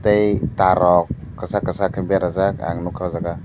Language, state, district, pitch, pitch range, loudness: Kokborok, Tripura, Dhalai, 95 Hz, 90-95 Hz, -19 LUFS